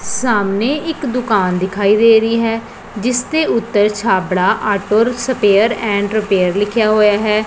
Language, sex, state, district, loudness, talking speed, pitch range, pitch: Punjabi, female, Punjab, Pathankot, -15 LUFS, 145 wpm, 205-235 Hz, 215 Hz